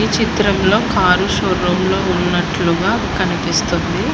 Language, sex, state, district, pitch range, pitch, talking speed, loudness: Telugu, female, Telangana, Hyderabad, 175-190 Hz, 180 Hz, 70 wpm, -15 LUFS